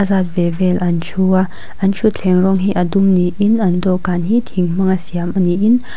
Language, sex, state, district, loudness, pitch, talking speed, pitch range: Mizo, female, Mizoram, Aizawl, -15 LUFS, 185 Hz, 200 wpm, 180-195 Hz